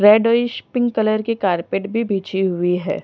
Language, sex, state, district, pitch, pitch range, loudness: Hindi, female, Punjab, Pathankot, 210 Hz, 190-230 Hz, -19 LUFS